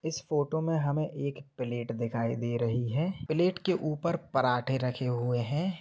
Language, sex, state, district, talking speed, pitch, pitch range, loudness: Hindi, male, Jharkhand, Jamtara, 175 wpm, 140 Hz, 120-160 Hz, -31 LUFS